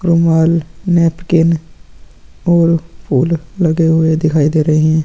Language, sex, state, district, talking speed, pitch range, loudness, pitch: Hindi, male, Chhattisgarh, Sukma, 120 wpm, 155-170 Hz, -13 LUFS, 160 Hz